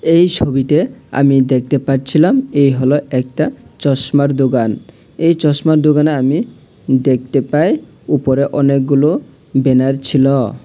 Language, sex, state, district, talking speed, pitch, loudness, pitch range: Bengali, male, Tripura, Unakoti, 115 wpm, 140 Hz, -14 LUFS, 135-150 Hz